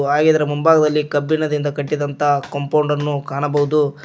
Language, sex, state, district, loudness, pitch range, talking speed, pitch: Kannada, male, Karnataka, Koppal, -18 LUFS, 145-150 Hz, 90 wpm, 145 Hz